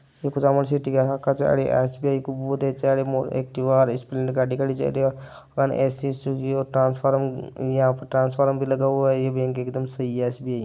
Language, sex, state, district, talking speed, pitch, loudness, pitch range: Marwari, male, Rajasthan, Nagaur, 180 wpm, 135 Hz, -23 LUFS, 130-135 Hz